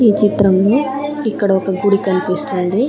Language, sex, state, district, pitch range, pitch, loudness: Telugu, female, Telangana, Mahabubabad, 190-230 Hz, 200 Hz, -15 LUFS